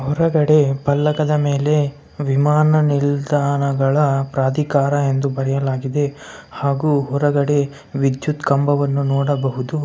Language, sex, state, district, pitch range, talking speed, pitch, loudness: Kannada, male, Karnataka, Bellary, 140-150 Hz, 85 wpm, 140 Hz, -18 LUFS